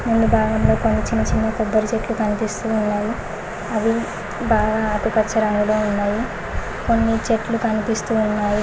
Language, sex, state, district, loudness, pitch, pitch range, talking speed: Telugu, female, Telangana, Mahabubabad, -20 LUFS, 220 Hz, 215-225 Hz, 125 wpm